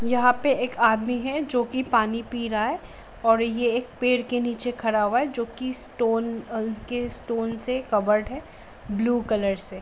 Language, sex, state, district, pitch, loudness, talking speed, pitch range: Hindi, female, Bihar, Sitamarhi, 235 Hz, -25 LUFS, 195 wpm, 225-245 Hz